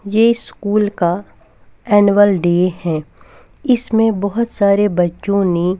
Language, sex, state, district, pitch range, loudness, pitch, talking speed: Hindi, female, Bihar, West Champaran, 175-210 Hz, -15 LUFS, 200 Hz, 125 wpm